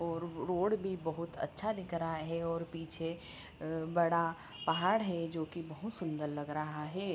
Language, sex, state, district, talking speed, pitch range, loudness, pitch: Hindi, female, Bihar, Bhagalpur, 170 wpm, 160-180 Hz, -37 LUFS, 165 Hz